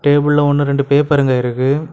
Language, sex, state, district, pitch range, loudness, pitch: Tamil, male, Tamil Nadu, Kanyakumari, 140-145 Hz, -14 LUFS, 145 Hz